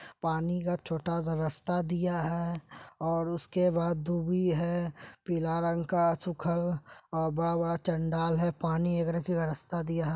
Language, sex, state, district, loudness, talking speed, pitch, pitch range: Maithili, female, Bihar, Supaul, -30 LUFS, 160 wpm, 170 Hz, 165-175 Hz